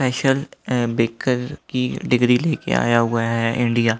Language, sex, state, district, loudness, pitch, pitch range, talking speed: Hindi, male, Delhi, New Delhi, -20 LUFS, 125 Hz, 115-130 Hz, 165 wpm